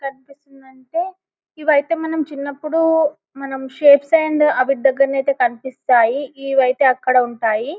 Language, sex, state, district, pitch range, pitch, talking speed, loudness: Telugu, female, Telangana, Karimnagar, 260-305 Hz, 275 Hz, 115 wpm, -17 LUFS